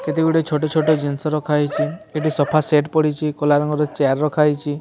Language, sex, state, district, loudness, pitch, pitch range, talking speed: Odia, male, Odisha, Sambalpur, -19 LUFS, 150 Hz, 150-155 Hz, 175 wpm